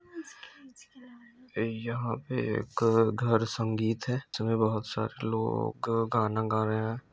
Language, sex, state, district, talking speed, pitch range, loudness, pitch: Hindi, male, Rajasthan, Nagaur, 120 wpm, 110-135 Hz, -30 LUFS, 115 Hz